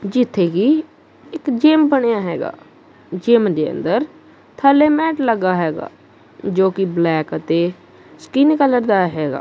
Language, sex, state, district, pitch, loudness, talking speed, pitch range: Punjabi, female, Punjab, Kapurthala, 215 Hz, -17 LUFS, 135 wpm, 180-280 Hz